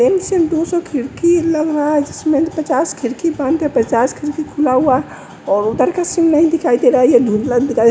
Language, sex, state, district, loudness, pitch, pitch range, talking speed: Hindi, male, Bihar, West Champaran, -15 LUFS, 295 Hz, 255-330 Hz, 205 wpm